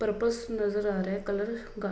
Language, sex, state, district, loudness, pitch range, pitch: Hindi, female, Bihar, Vaishali, -31 LUFS, 200-225 Hz, 210 Hz